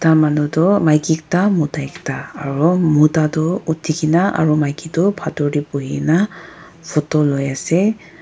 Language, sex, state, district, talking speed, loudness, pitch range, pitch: Nagamese, female, Nagaland, Dimapur, 140 wpm, -17 LUFS, 150-170 Hz, 160 Hz